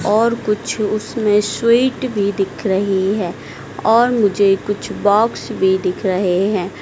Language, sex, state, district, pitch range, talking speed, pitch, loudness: Hindi, female, Madhya Pradesh, Dhar, 190-220 Hz, 140 wpm, 205 Hz, -17 LUFS